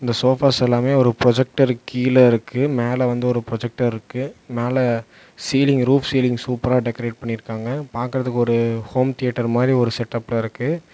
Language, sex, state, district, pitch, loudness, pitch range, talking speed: Tamil, male, Tamil Nadu, Namakkal, 125 Hz, -19 LUFS, 120-130 Hz, 140 wpm